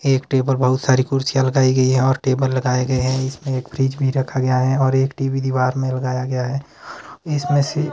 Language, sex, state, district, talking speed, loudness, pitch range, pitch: Hindi, male, Himachal Pradesh, Shimla, 225 wpm, -19 LUFS, 130-135 Hz, 130 Hz